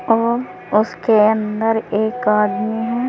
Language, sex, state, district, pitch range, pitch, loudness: Hindi, female, Uttar Pradesh, Saharanpur, 210-235 Hz, 220 Hz, -17 LUFS